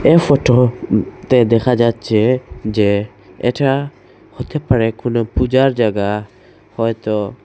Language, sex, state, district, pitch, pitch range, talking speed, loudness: Bengali, male, Assam, Hailakandi, 120 Hz, 110-125 Hz, 95 wpm, -16 LUFS